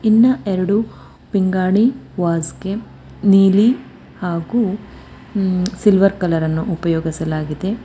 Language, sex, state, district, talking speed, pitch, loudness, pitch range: Kannada, female, Karnataka, Bangalore, 90 wpm, 195 Hz, -17 LUFS, 170-210 Hz